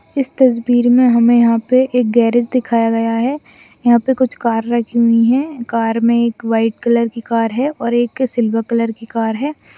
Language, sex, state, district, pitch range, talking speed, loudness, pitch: Hindi, female, Bihar, Madhepura, 230-250 Hz, 205 wpm, -15 LUFS, 235 Hz